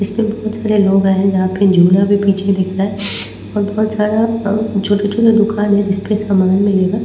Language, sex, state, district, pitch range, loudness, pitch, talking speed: Hindi, female, Bihar, Patna, 195-215 Hz, -14 LUFS, 205 Hz, 205 wpm